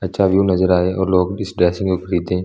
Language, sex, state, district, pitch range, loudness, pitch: Hindi, male, Delhi, New Delhi, 90-95 Hz, -17 LUFS, 95 Hz